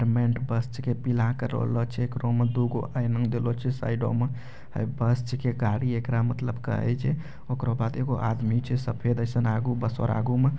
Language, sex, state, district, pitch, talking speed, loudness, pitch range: Maithili, male, Bihar, Bhagalpur, 120 Hz, 190 wpm, -27 LUFS, 115-125 Hz